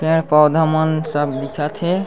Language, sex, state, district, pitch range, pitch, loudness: Chhattisgarhi, male, Chhattisgarh, Sukma, 150-160 Hz, 155 Hz, -17 LUFS